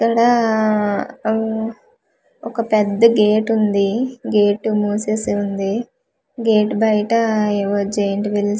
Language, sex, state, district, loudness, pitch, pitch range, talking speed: Telugu, female, Andhra Pradesh, Manyam, -18 LUFS, 215 Hz, 205-230 Hz, 105 wpm